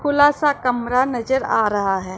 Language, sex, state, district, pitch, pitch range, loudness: Hindi, female, Punjab, Pathankot, 250 Hz, 215-285 Hz, -19 LUFS